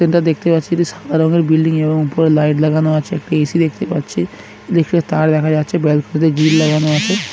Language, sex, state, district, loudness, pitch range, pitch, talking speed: Bengali, male, West Bengal, Dakshin Dinajpur, -15 LUFS, 150-165 Hz, 155 Hz, 220 wpm